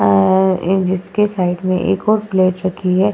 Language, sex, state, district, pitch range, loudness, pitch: Hindi, female, Uttar Pradesh, Budaun, 180-195 Hz, -16 LUFS, 185 Hz